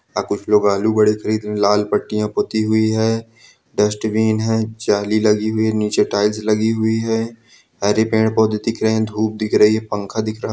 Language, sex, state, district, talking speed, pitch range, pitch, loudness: Hindi, male, Telangana, Karimnagar, 215 wpm, 105-110 Hz, 110 Hz, -18 LUFS